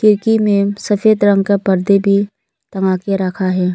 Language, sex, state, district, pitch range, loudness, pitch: Hindi, female, Arunachal Pradesh, Lower Dibang Valley, 190-205 Hz, -14 LUFS, 200 Hz